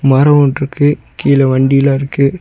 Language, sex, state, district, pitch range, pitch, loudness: Tamil, male, Tamil Nadu, Nilgiris, 135-140 Hz, 140 Hz, -12 LUFS